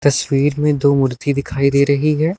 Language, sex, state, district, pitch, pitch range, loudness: Hindi, male, Uttar Pradesh, Lucknow, 140 Hz, 140-150 Hz, -16 LUFS